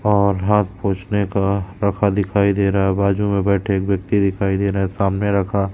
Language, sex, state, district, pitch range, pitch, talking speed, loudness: Hindi, male, Madhya Pradesh, Katni, 95-100 Hz, 100 Hz, 210 wpm, -19 LUFS